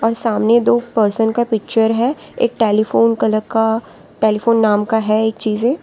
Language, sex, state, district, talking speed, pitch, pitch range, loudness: Hindi, female, Gujarat, Valsad, 155 wpm, 225 Hz, 220-230 Hz, -15 LUFS